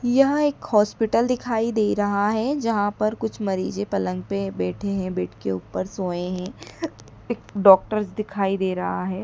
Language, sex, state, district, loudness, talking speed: Hindi, female, Madhya Pradesh, Dhar, -23 LUFS, 160 wpm